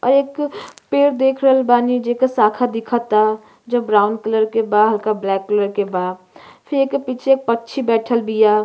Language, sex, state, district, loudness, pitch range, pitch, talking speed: Bhojpuri, female, Uttar Pradesh, Ghazipur, -17 LUFS, 215-260 Hz, 230 Hz, 160 wpm